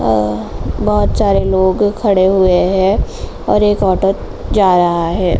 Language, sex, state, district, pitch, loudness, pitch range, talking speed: Hindi, female, Uttar Pradesh, Jalaun, 185 Hz, -14 LUFS, 175-195 Hz, 145 wpm